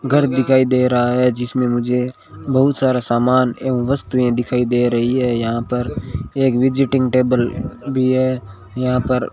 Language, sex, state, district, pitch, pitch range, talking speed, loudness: Hindi, male, Rajasthan, Bikaner, 125 Hz, 120-130 Hz, 160 wpm, -17 LUFS